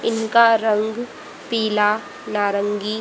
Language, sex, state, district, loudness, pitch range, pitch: Hindi, female, Haryana, Jhajjar, -19 LUFS, 210-225 Hz, 215 Hz